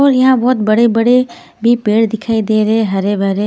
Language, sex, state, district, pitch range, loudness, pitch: Hindi, female, Punjab, Fazilka, 215-240 Hz, -13 LUFS, 225 Hz